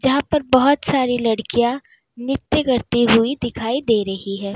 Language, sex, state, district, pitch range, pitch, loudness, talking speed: Hindi, female, Uttar Pradesh, Lalitpur, 230-270 Hz, 245 Hz, -18 LUFS, 155 wpm